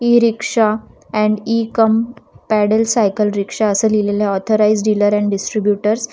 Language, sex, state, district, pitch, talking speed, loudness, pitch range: Marathi, female, Maharashtra, Washim, 215 Hz, 145 wpm, -16 LUFS, 205-225 Hz